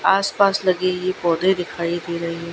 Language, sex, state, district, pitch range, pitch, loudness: Hindi, female, Gujarat, Gandhinagar, 170-190 Hz, 180 Hz, -20 LUFS